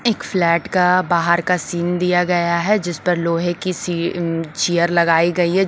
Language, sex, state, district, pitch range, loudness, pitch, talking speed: Hindi, female, Bihar, Patna, 170-180 Hz, -18 LUFS, 175 Hz, 190 wpm